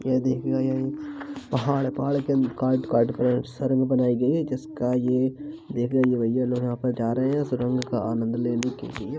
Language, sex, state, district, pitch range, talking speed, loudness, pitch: Hindi, male, Uttar Pradesh, Jalaun, 125-135 Hz, 170 wpm, -25 LUFS, 130 Hz